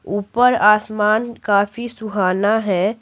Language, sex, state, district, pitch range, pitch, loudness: Hindi, female, Bihar, Patna, 200-225 Hz, 210 Hz, -17 LUFS